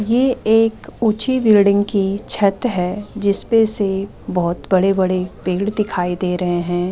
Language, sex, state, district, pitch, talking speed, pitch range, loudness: Hindi, female, Delhi, New Delhi, 200 Hz, 145 wpm, 185-220 Hz, -17 LUFS